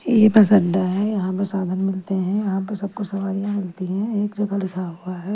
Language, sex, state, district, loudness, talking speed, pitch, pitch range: Hindi, female, Delhi, New Delhi, -21 LUFS, 235 wpm, 195 Hz, 185-205 Hz